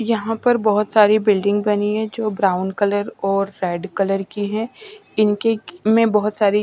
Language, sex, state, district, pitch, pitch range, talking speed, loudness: Hindi, female, Punjab, Pathankot, 210 Hz, 200-220 Hz, 180 wpm, -19 LUFS